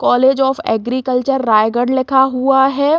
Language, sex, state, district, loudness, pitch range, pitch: Hindi, female, Chhattisgarh, Raigarh, -14 LUFS, 245-270 Hz, 265 Hz